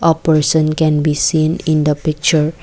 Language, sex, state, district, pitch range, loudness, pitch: English, female, Assam, Kamrup Metropolitan, 150-160 Hz, -14 LUFS, 155 Hz